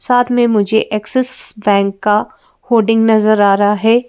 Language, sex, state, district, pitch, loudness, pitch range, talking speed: Hindi, female, Madhya Pradesh, Bhopal, 220 Hz, -13 LUFS, 210-240 Hz, 160 wpm